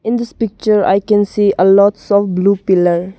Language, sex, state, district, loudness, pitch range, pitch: English, female, Arunachal Pradesh, Longding, -13 LUFS, 190-210 Hz, 200 Hz